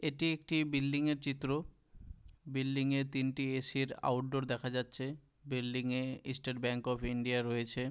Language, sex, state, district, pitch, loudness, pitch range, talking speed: Bengali, male, West Bengal, Malda, 135 Hz, -36 LUFS, 125-140 Hz, 130 wpm